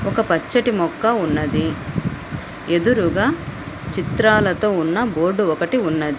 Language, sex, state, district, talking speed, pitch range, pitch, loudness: Telugu, female, Telangana, Hyderabad, 95 wpm, 165-230 Hz, 200 Hz, -19 LUFS